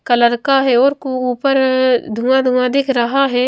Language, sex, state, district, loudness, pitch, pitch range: Hindi, female, Chandigarh, Chandigarh, -14 LUFS, 255 Hz, 245-270 Hz